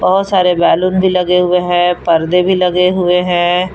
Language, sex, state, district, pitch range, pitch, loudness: Hindi, female, Jharkhand, Palamu, 180-185 Hz, 180 Hz, -12 LUFS